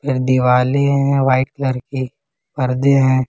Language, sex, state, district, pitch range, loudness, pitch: Hindi, male, Jharkhand, Ranchi, 130-140 Hz, -16 LUFS, 130 Hz